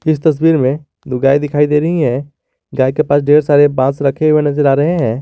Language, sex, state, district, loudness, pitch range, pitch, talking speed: Hindi, male, Jharkhand, Garhwa, -13 LUFS, 135-155 Hz, 145 Hz, 240 wpm